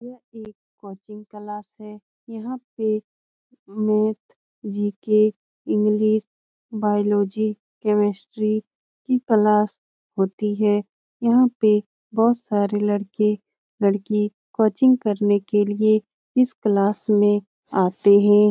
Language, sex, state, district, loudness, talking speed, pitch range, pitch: Hindi, female, Bihar, Lakhisarai, -21 LUFS, 95 wpm, 205-220 Hz, 210 Hz